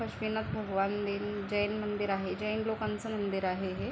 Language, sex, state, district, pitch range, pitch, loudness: Marathi, female, Maharashtra, Aurangabad, 195-215 Hz, 205 Hz, -33 LUFS